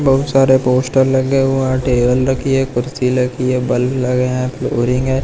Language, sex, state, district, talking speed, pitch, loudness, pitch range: Hindi, male, Madhya Pradesh, Katni, 195 wpm, 130 Hz, -15 LUFS, 125-135 Hz